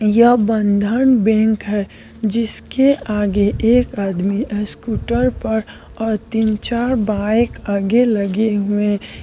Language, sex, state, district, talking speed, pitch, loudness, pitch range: Hindi, female, Bihar, Kishanganj, 110 wpm, 220 Hz, -17 LUFS, 205-235 Hz